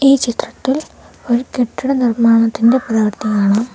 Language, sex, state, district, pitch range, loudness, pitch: Malayalam, female, Kerala, Kollam, 225-260 Hz, -15 LUFS, 240 Hz